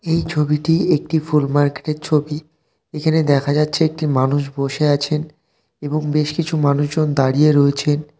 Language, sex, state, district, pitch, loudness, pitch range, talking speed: Bengali, male, West Bengal, North 24 Parganas, 150 Hz, -18 LUFS, 145-155 Hz, 145 wpm